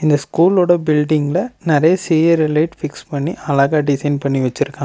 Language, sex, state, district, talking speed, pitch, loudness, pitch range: Tamil, male, Tamil Nadu, Namakkal, 160 wpm, 150 Hz, -16 LUFS, 145-165 Hz